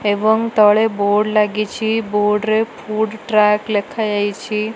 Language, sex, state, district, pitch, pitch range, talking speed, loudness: Odia, female, Odisha, Malkangiri, 215 Hz, 210-220 Hz, 125 wpm, -17 LUFS